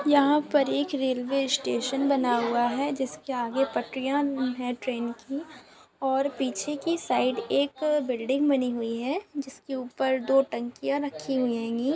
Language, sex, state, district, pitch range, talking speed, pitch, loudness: Hindi, female, Andhra Pradesh, Chittoor, 250-285 Hz, 145 wpm, 270 Hz, -27 LUFS